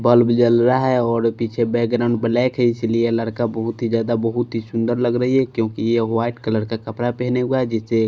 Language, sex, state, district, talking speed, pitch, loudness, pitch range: Hindi, male, Bihar, Kaimur, 220 wpm, 115 Hz, -19 LUFS, 115-120 Hz